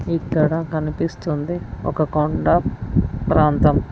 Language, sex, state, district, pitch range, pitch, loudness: Telugu, female, Telangana, Mahabubabad, 150-165 Hz, 155 Hz, -20 LUFS